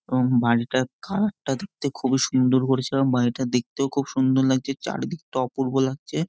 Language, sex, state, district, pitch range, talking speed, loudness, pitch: Bengali, male, West Bengal, Jhargram, 130-135 Hz, 145 wpm, -23 LUFS, 130 Hz